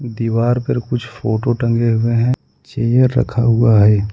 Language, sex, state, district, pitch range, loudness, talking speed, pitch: Hindi, male, Jharkhand, Ranchi, 115-120 Hz, -16 LUFS, 160 wpm, 120 Hz